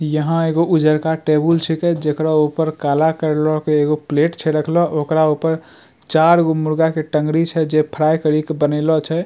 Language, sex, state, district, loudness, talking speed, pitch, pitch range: Angika, male, Bihar, Bhagalpur, -17 LUFS, 175 wpm, 155 Hz, 155-160 Hz